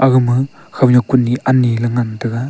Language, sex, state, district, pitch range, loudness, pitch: Wancho, male, Arunachal Pradesh, Longding, 120-130 Hz, -15 LUFS, 125 Hz